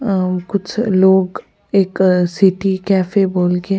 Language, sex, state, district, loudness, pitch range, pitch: Hindi, female, Goa, North and South Goa, -15 LUFS, 185-195 Hz, 190 Hz